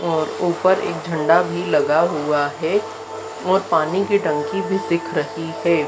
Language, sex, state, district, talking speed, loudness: Hindi, female, Madhya Pradesh, Dhar, 165 wpm, -20 LUFS